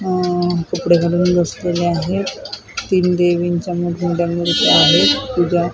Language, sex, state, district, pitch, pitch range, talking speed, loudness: Marathi, female, Maharashtra, Mumbai Suburban, 175 Hz, 170-180 Hz, 125 wpm, -16 LUFS